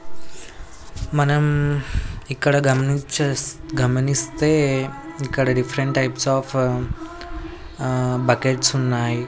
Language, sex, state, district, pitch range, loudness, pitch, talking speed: Telugu, male, Andhra Pradesh, Sri Satya Sai, 125-145 Hz, -21 LUFS, 135 Hz, 70 wpm